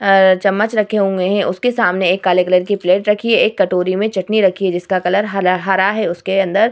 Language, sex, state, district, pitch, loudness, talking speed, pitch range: Hindi, female, Bihar, Vaishali, 195 Hz, -15 LUFS, 250 wpm, 185-205 Hz